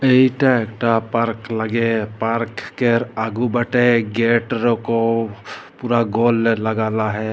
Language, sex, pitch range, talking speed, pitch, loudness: Sadri, male, 110-120 Hz, 130 wpm, 115 Hz, -18 LUFS